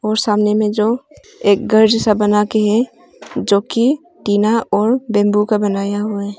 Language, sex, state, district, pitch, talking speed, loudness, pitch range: Hindi, female, Arunachal Pradesh, Papum Pare, 215 Hz, 160 wpm, -15 LUFS, 205-230 Hz